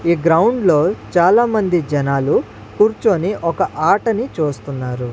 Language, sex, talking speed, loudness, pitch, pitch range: Telugu, male, 105 wpm, -16 LUFS, 170 Hz, 145-215 Hz